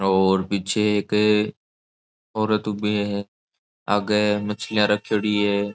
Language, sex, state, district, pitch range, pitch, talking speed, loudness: Marwari, male, Rajasthan, Nagaur, 100-105 Hz, 105 Hz, 105 wpm, -22 LUFS